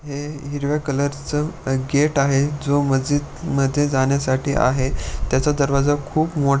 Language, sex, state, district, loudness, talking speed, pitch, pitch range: Marathi, male, Maharashtra, Pune, -20 LUFS, 145 wpm, 140 Hz, 135-145 Hz